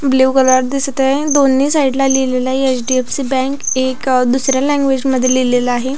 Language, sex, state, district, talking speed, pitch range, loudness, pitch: Marathi, female, Maharashtra, Pune, 170 wpm, 255-270 Hz, -14 LUFS, 265 Hz